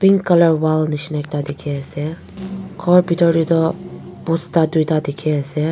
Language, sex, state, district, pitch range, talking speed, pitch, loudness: Nagamese, female, Nagaland, Dimapur, 150-175 Hz, 155 wpm, 160 Hz, -17 LUFS